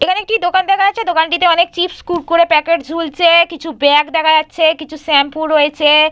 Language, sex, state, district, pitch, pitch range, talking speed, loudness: Bengali, female, West Bengal, Purulia, 330 Hz, 310-350 Hz, 175 wpm, -13 LUFS